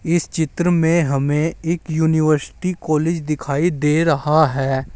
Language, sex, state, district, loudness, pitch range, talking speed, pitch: Hindi, male, Uttar Pradesh, Saharanpur, -18 LUFS, 150-165 Hz, 135 wpm, 160 Hz